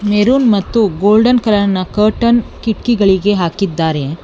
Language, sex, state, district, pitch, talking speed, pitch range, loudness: Kannada, female, Karnataka, Bangalore, 205 Hz, 100 wpm, 190-225 Hz, -13 LUFS